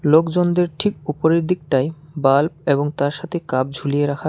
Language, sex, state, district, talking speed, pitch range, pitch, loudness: Bengali, male, West Bengal, Alipurduar, 155 wpm, 140-175 Hz, 150 Hz, -19 LUFS